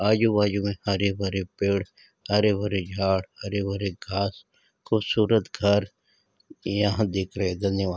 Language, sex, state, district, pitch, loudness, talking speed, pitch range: Hindi, female, Maharashtra, Nagpur, 100 Hz, -25 LUFS, 115 wpm, 95-105 Hz